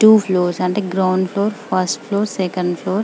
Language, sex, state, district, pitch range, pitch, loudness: Telugu, female, Telangana, Karimnagar, 185-205 Hz, 185 Hz, -18 LUFS